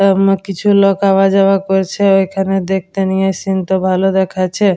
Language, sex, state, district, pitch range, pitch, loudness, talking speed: Bengali, female, West Bengal, Jalpaiguri, 190-195 Hz, 195 Hz, -13 LUFS, 165 wpm